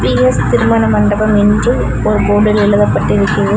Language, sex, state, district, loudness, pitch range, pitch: Tamil, female, Tamil Nadu, Namakkal, -11 LUFS, 125-210 Hz, 200 Hz